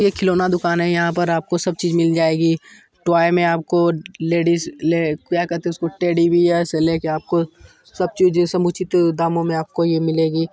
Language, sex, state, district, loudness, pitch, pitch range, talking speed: Hindi, male, Bihar, Jamui, -18 LUFS, 170 Hz, 165-175 Hz, 195 wpm